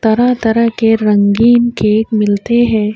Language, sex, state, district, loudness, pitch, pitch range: Urdu, female, Uttar Pradesh, Budaun, -12 LUFS, 225 Hz, 210-235 Hz